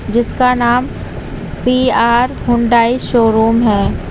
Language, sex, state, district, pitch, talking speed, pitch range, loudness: Hindi, female, Uttar Pradesh, Lucknow, 240 Hz, 90 wpm, 235-250 Hz, -13 LUFS